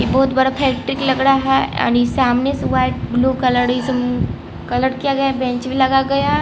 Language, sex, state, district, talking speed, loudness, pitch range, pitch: Hindi, female, Bihar, Patna, 170 wpm, -17 LUFS, 250-270 Hz, 265 Hz